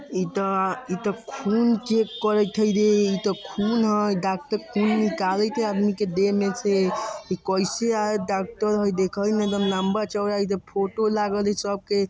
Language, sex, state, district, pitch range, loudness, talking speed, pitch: Bajjika, male, Bihar, Vaishali, 195-215 Hz, -24 LUFS, 180 wpm, 205 Hz